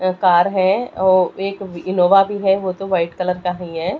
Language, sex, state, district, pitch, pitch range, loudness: Hindi, male, Delhi, New Delhi, 185 Hz, 180-195 Hz, -17 LUFS